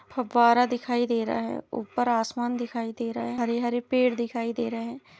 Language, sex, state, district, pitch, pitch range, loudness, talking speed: Hindi, female, Chhattisgarh, Bilaspur, 235 Hz, 230-245 Hz, -26 LUFS, 210 wpm